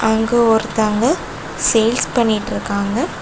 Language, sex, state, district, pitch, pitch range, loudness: Tamil, female, Tamil Nadu, Kanyakumari, 225 Hz, 220-240 Hz, -17 LUFS